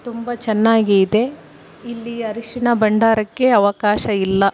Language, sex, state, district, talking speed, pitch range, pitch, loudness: Kannada, female, Karnataka, Shimoga, 90 wpm, 210-235 Hz, 225 Hz, -17 LUFS